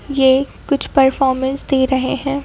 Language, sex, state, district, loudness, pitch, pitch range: Hindi, female, Madhya Pradesh, Bhopal, -16 LUFS, 270 Hz, 265-275 Hz